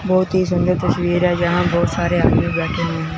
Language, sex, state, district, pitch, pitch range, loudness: Hindi, male, Punjab, Fazilka, 175 Hz, 170-180 Hz, -17 LUFS